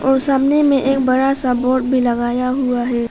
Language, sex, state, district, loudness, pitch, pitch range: Hindi, female, Arunachal Pradesh, Papum Pare, -15 LUFS, 255 Hz, 250-270 Hz